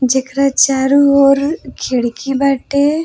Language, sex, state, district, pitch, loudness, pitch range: Bhojpuri, female, Uttar Pradesh, Varanasi, 275 Hz, -13 LUFS, 265-280 Hz